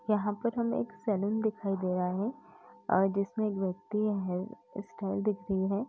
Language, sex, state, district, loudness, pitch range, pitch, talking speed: Hindi, female, Uttar Pradesh, Etah, -32 LUFS, 190-215 Hz, 200 Hz, 185 wpm